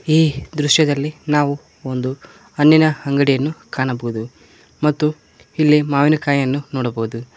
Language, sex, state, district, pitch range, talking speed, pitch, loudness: Kannada, male, Karnataka, Koppal, 130-150 Hz, 100 wpm, 145 Hz, -18 LUFS